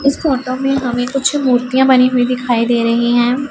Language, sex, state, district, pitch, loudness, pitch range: Hindi, female, Punjab, Pathankot, 250 Hz, -14 LUFS, 245-270 Hz